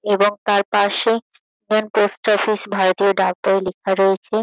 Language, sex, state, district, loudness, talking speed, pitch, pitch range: Bengali, female, West Bengal, Kolkata, -18 LUFS, 150 wpm, 205 Hz, 195-215 Hz